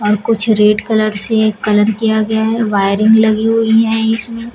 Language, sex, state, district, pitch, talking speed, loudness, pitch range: Hindi, female, Uttar Pradesh, Shamli, 220 Hz, 170 wpm, -13 LUFS, 215-225 Hz